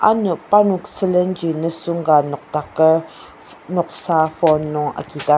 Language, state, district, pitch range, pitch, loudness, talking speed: Ao, Nagaland, Dimapur, 150-180 Hz, 165 Hz, -18 LUFS, 125 wpm